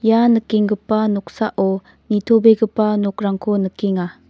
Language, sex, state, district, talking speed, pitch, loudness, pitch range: Garo, female, Meghalaya, North Garo Hills, 85 wpm, 210 Hz, -18 LUFS, 200-220 Hz